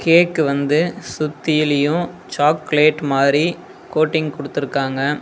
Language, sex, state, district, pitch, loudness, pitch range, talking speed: Tamil, male, Tamil Nadu, Nilgiris, 150 Hz, -18 LUFS, 145-160 Hz, 80 wpm